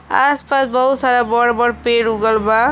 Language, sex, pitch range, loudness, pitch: Bhojpuri, female, 230-260 Hz, -15 LUFS, 240 Hz